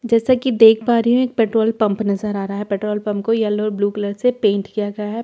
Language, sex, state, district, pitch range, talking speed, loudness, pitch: Hindi, female, Bihar, Katihar, 205-230 Hz, 295 wpm, -18 LUFS, 215 Hz